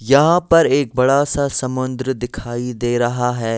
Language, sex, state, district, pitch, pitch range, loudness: Hindi, male, Delhi, New Delhi, 130 Hz, 120-140 Hz, -17 LUFS